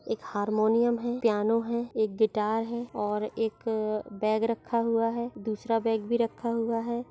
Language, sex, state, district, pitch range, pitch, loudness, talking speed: Hindi, female, Maharashtra, Solapur, 215-235 Hz, 225 Hz, -29 LUFS, 170 wpm